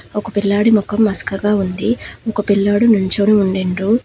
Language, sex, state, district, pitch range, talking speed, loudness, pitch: Telugu, female, Telangana, Hyderabad, 200-215 Hz, 135 wpm, -15 LUFS, 205 Hz